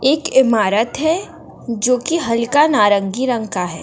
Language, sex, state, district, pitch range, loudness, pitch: Hindi, female, Maharashtra, Chandrapur, 215-285 Hz, -16 LUFS, 240 Hz